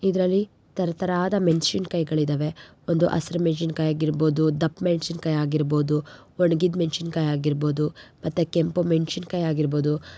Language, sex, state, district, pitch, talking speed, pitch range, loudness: Kannada, female, Karnataka, Mysore, 165 Hz, 110 wpm, 150-175 Hz, -24 LUFS